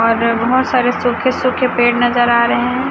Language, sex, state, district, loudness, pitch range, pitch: Hindi, female, Chhattisgarh, Raipur, -14 LUFS, 235-255 Hz, 245 Hz